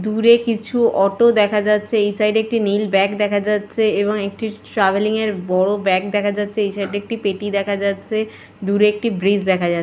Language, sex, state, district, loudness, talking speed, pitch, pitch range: Bengali, female, West Bengal, Jalpaiguri, -18 LUFS, 200 wpm, 205 Hz, 200-215 Hz